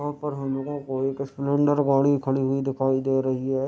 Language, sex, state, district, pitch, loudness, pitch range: Hindi, male, Bihar, Madhepura, 135 Hz, -24 LUFS, 135-140 Hz